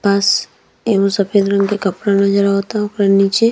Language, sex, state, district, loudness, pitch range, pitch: Bhojpuri, female, Bihar, East Champaran, -15 LUFS, 195-205 Hz, 200 Hz